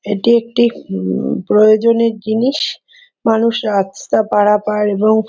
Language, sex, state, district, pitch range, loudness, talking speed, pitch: Bengali, female, West Bengal, Kolkata, 210-235 Hz, -14 LUFS, 115 wpm, 220 Hz